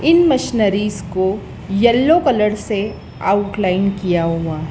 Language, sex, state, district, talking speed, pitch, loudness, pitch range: Hindi, female, Madhya Pradesh, Dhar, 115 wpm, 205 Hz, -17 LUFS, 185-235 Hz